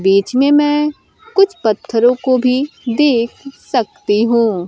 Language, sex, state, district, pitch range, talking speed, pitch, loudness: Hindi, female, Bihar, Kaimur, 225-285 Hz, 130 wpm, 250 Hz, -15 LUFS